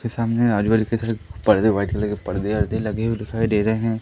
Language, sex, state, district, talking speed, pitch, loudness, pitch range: Hindi, male, Madhya Pradesh, Katni, 255 wpm, 110 Hz, -21 LUFS, 105-115 Hz